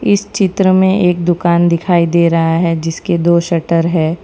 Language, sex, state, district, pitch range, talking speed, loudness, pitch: Hindi, female, Gujarat, Valsad, 170-180 Hz, 185 wpm, -13 LUFS, 170 Hz